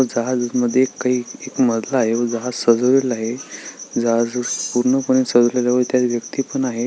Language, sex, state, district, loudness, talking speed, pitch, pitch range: Marathi, male, Maharashtra, Sindhudurg, -19 LUFS, 175 wpm, 125 Hz, 120-130 Hz